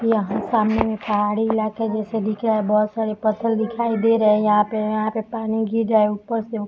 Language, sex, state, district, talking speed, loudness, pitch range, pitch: Hindi, female, Uttar Pradesh, Deoria, 235 wpm, -21 LUFS, 215-225 Hz, 220 Hz